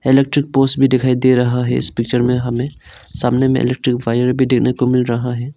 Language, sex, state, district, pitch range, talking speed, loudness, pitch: Hindi, male, Arunachal Pradesh, Lower Dibang Valley, 120-130 Hz, 225 wpm, -15 LUFS, 125 Hz